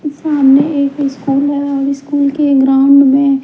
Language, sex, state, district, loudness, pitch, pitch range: Hindi, female, Bihar, Patna, -11 LUFS, 280 Hz, 275-285 Hz